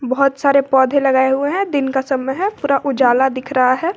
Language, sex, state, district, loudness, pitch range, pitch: Hindi, female, Jharkhand, Garhwa, -16 LUFS, 265-280 Hz, 270 Hz